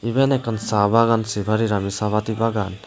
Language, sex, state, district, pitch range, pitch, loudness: Chakma, male, Tripura, Unakoti, 105-115 Hz, 110 Hz, -20 LUFS